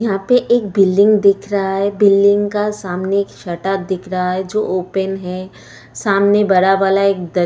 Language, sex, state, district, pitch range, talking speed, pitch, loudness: Hindi, female, Chhattisgarh, Sukma, 185-205 Hz, 185 wpm, 195 Hz, -15 LUFS